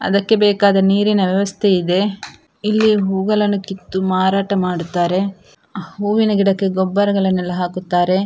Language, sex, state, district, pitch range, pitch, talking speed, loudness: Kannada, female, Karnataka, Dakshina Kannada, 185-205 Hz, 195 Hz, 100 wpm, -17 LUFS